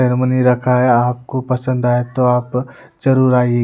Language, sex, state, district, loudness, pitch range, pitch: Hindi, female, Bihar, West Champaran, -15 LUFS, 125-130 Hz, 125 Hz